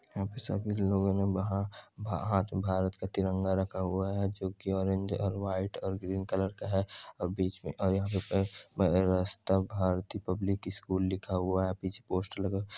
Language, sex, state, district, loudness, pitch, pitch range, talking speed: Hindi, male, Andhra Pradesh, Chittoor, -32 LUFS, 95 Hz, 95-100 Hz, 220 wpm